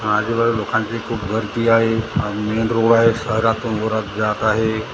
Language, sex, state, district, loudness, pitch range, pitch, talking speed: Marathi, male, Maharashtra, Gondia, -18 LUFS, 110-115 Hz, 110 Hz, 160 wpm